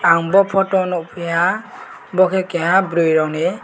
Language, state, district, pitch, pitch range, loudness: Kokborok, Tripura, West Tripura, 180 Hz, 165-190 Hz, -17 LUFS